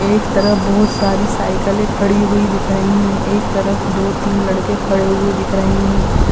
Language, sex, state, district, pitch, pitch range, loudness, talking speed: Hindi, female, Uttar Pradesh, Hamirpur, 200 Hz, 200-205 Hz, -15 LUFS, 190 wpm